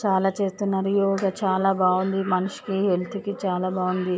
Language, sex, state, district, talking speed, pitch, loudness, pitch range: Telugu, female, Telangana, Nalgonda, 155 wpm, 190 Hz, -24 LUFS, 185-195 Hz